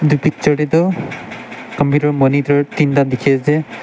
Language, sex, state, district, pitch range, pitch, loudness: Nagamese, male, Nagaland, Dimapur, 140-150 Hz, 145 Hz, -15 LUFS